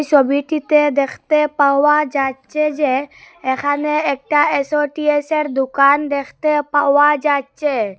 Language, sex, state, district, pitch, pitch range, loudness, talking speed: Bengali, female, Assam, Hailakandi, 290 Hz, 280-300 Hz, -16 LUFS, 100 wpm